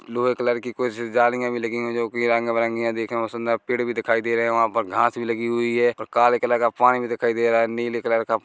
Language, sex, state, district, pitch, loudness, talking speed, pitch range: Hindi, male, Chhattisgarh, Korba, 120 Hz, -22 LUFS, 305 wpm, 115-120 Hz